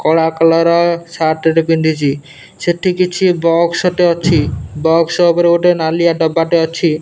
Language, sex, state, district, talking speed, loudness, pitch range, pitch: Odia, male, Odisha, Nuapada, 130 wpm, -13 LUFS, 160-170 Hz, 165 Hz